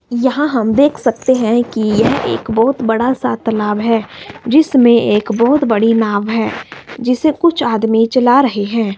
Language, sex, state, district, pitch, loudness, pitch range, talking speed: Hindi, male, Himachal Pradesh, Shimla, 235 Hz, -13 LUFS, 225-255 Hz, 165 wpm